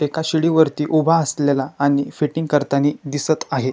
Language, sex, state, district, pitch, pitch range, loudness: Marathi, male, Maharashtra, Chandrapur, 150 Hz, 140-160 Hz, -19 LUFS